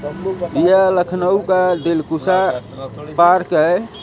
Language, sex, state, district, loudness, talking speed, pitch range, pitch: Hindi, male, Uttar Pradesh, Lucknow, -16 LUFS, 90 wpm, 155-185 Hz, 180 Hz